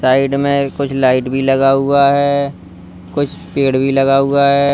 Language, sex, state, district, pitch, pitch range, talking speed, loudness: Hindi, male, Uttar Pradesh, Lalitpur, 135 Hz, 130-140 Hz, 180 wpm, -14 LUFS